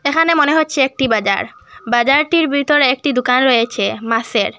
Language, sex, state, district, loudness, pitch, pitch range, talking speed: Bengali, female, Assam, Hailakandi, -14 LUFS, 265 Hz, 235-295 Hz, 145 wpm